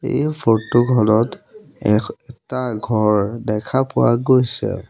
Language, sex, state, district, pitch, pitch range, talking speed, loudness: Assamese, male, Assam, Sonitpur, 120 Hz, 110-130 Hz, 110 wpm, -18 LUFS